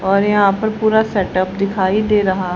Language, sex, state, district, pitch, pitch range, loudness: Hindi, female, Haryana, Charkhi Dadri, 200 Hz, 190-210 Hz, -16 LUFS